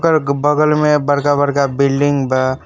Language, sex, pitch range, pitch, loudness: Bhojpuri, male, 140-150 Hz, 145 Hz, -14 LUFS